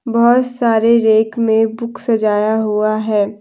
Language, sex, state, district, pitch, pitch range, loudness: Hindi, female, Jharkhand, Deoghar, 220 Hz, 215-235 Hz, -14 LUFS